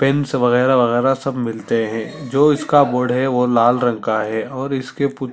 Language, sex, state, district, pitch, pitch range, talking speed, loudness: Hindi, male, Chhattisgarh, Sarguja, 130 Hz, 120-135 Hz, 200 wpm, -17 LUFS